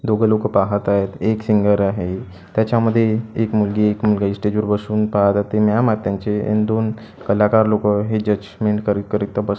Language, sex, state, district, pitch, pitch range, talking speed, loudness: Marathi, male, Maharashtra, Gondia, 105 Hz, 100-110 Hz, 140 wpm, -18 LUFS